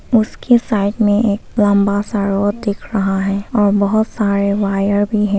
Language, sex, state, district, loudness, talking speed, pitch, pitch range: Hindi, female, Arunachal Pradesh, Papum Pare, -16 LUFS, 180 wpm, 205 Hz, 200-215 Hz